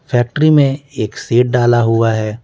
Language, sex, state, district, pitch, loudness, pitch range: Hindi, male, Bihar, West Champaran, 120 Hz, -14 LUFS, 115-140 Hz